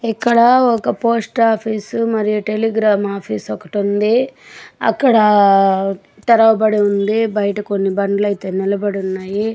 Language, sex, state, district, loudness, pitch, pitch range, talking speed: Telugu, female, Andhra Pradesh, Chittoor, -15 LUFS, 210 Hz, 200-225 Hz, 105 wpm